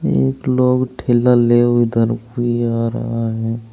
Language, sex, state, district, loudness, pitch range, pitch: Hindi, male, Uttar Pradesh, Saharanpur, -16 LUFS, 115-120 Hz, 120 Hz